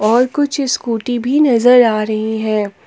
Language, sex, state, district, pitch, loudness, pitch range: Hindi, female, Jharkhand, Palamu, 235 Hz, -14 LUFS, 220-255 Hz